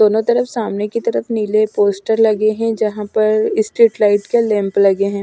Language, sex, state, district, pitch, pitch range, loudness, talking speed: Hindi, female, Punjab, Pathankot, 215 Hz, 205-230 Hz, -15 LUFS, 195 wpm